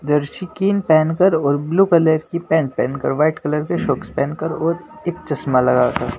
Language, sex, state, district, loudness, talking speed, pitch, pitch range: Hindi, male, Delhi, New Delhi, -18 LUFS, 185 wpm, 160 Hz, 150-175 Hz